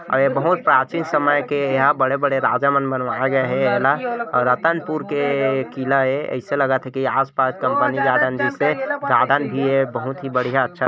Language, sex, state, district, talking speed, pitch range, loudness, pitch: Chhattisgarhi, male, Chhattisgarh, Bilaspur, 210 wpm, 130-145 Hz, -19 LUFS, 135 Hz